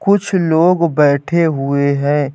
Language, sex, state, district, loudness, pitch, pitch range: Hindi, male, Uttar Pradesh, Hamirpur, -14 LUFS, 155 Hz, 140-170 Hz